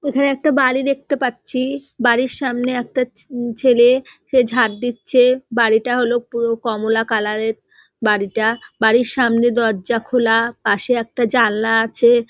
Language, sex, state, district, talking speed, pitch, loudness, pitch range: Bengali, female, West Bengal, North 24 Parganas, 135 wpm, 240 Hz, -17 LUFS, 225-255 Hz